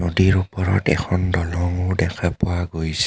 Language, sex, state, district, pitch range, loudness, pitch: Assamese, male, Assam, Kamrup Metropolitan, 85-95 Hz, -21 LUFS, 90 Hz